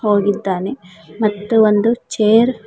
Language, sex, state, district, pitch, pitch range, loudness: Kannada, female, Karnataka, Koppal, 215 Hz, 200-225 Hz, -16 LUFS